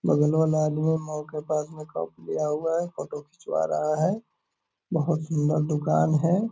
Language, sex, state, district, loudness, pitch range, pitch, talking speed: Hindi, male, Bihar, Purnia, -26 LUFS, 150-160 Hz, 155 Hz, 100 wpm